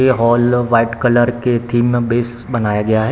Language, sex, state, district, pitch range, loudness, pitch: Hindi, male, Bihar, Samastipur, 115-120 Hz, -15 LUFS, 120 Hz